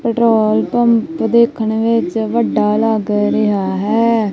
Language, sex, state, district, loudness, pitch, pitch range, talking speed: Punjabi, female, Punjab, Kapurthala, -14 LUFS, 225 Hz, 215-230 Hz, 110 wpm